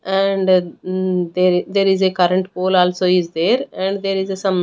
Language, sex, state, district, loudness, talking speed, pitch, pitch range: English, female, Haryana, Rohtak, -17 LUFS, 220 wpm, 185 Hz, 180-195 Hz